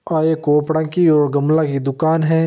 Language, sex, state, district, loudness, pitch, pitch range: Marwari, male, Rajasthan, Nagaur, -16 LUFS, 155 Hz, 150-160 Hz